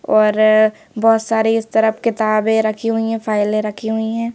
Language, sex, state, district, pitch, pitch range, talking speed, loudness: Hindi, female, Madhya Pradesh, Bhopal, 220 Hz, 215-225 Hz, 180 wpm, -16 LUFS